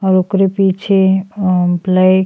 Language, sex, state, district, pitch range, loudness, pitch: Bhojpuri, female, Uttar Pradesh, Ghazipur, 185-195 Hz, -13 LUFS, 190 Hz